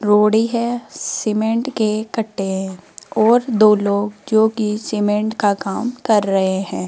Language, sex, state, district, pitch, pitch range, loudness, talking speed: Hindi, female, Rajasthan, Jaipur, 215 Hz, 205-225 Hz, -18 LUFS, 150 wpm